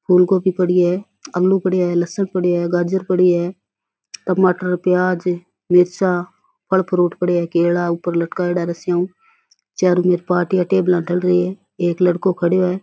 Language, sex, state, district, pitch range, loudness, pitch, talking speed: Rajasthani, female, Rajasthan, Churu, 175-185 Hz, -18 LUFS, 180 Hz, 175 wpm